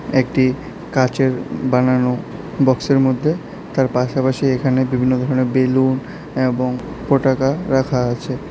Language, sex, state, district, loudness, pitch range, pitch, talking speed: Bengali, male, Tripura, South Tripura, -18 LUFS, 125-135 Hz, 130 Hz, 105 wpm